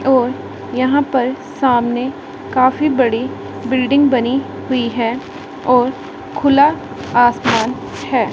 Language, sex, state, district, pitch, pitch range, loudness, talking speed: Hindi, female, Punjab, Pathankot, 255 Hz, 245-270 Hz, -16 LUFS, 100 wpm